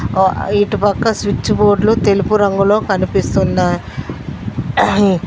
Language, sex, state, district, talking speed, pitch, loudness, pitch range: Telugu, female, Telangana, Mahabubabad, 90 wpm, 205 Hz, -14 LUFS, 195-210 Hz